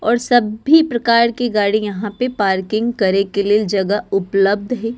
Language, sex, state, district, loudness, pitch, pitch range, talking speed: Bajjika, female, Bihar, Vaishali, -16 LUFS, 215 Hz, 200-235 Hz, 170 wpm